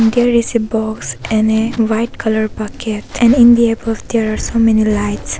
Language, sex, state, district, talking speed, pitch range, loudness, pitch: English, female, Arunachal Pradesh, Papum Pare, 200 wpm, 215-230 Hz, -14 LUFS, 225 Hz